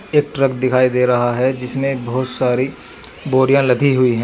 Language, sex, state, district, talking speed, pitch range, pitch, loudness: Hindi, male, Jharkhand, Garhwa, 185 wpm, 125-135 Hz, 130 Hz, -16 LUFS